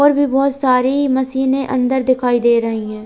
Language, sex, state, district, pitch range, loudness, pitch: Hindi, female, Bihar, Katihar, 245-270 Hz, -15 LUFS, 260 Hz